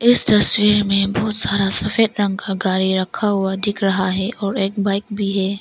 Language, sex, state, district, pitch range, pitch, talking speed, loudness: Hindi, female, Arunachal Pradesh, Longding, 195-210 Hz, 200 Hz, 205 wpm, -17 LUFS